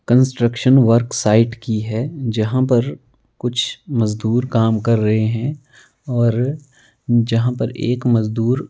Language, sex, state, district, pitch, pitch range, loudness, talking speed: Hindi, male, Himachal Pradesh, Shimla, 120 Hz, 115-125 Hz, -18 LUFS, 125 wpm